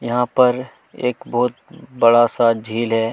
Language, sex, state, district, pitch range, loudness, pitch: Hindi, male, Chhattisgarh, Kabirdham, 115-125 Hz, -18 LUFS, 120 Hz